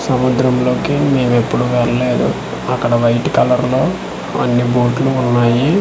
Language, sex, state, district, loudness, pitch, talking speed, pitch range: Telugu, male, Andhra Pradesh, Manyam, -15 LUFS, 125 Hz, 115 wpm, 120-130 Hz